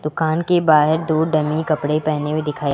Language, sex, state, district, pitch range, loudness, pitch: Hindi, male, Rajasthan, Jaipur, 150-160 Hz, -18 LUFS, 155 Hz